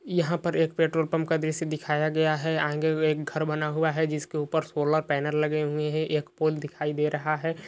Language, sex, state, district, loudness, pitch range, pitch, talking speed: Hindi, male, Uttar Pradesh, Etah, -27 LUFS, 150-160 Hz, 155 Hz, 240 wpm